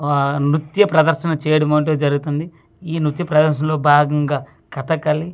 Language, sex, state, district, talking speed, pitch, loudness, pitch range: Telugu, male, Andhra Pradesh, Manyam, 135 wpm, 150 Hz, -17 LUFS, 145-160 Hz